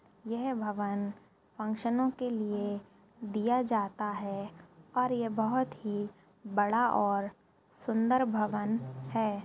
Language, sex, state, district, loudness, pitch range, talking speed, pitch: Hindi, female, Uttar Pradesh, Budaun, -32 LUFS, 200-230 Hz, 110 wpm, 210 Hz